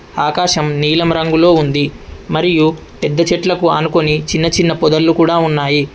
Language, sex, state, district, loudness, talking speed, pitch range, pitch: Telugu, male, Telangana, Adilabad, -13 LUFS, 130 wpm, 150-170 Hz, 160 Hz